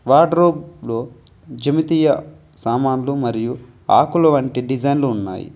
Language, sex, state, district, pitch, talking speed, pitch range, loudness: Telugu, male, Telangana, Mahabubabad, 135 Hz, 95 wpm, 120-155 Hz, -18 LUFS